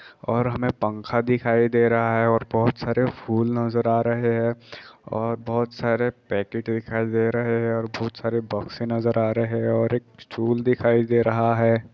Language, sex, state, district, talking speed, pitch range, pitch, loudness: Hindi, male, Bihar, East Champaran, 190 wpm, 115-120 Hz, 115 Hz, -23 LUFS